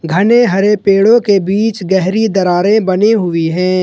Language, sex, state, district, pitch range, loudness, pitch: Hindi, male, Jharkhand, Ranchi, 185-215 Hz, -11 LUFS, 195 Hz